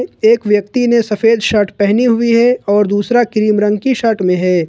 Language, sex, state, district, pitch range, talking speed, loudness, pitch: Hindi, male, Jharkhand, Ranchi, 205-235 Hz, 205 wpm, -13 LUFS, 215 Hz